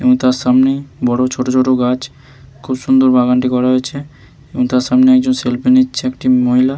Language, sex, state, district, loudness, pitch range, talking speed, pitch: Bengali, male, West Bengal, Malda, -13 LUFS, 125-130 Hz, 185 wpm, 130 Hz